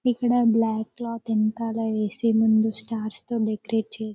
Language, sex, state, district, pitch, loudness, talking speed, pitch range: Telugu, female, Telangana, Karimnagar, 225 Hz, -24 LUFS, 145 wpm, 220-230 Hz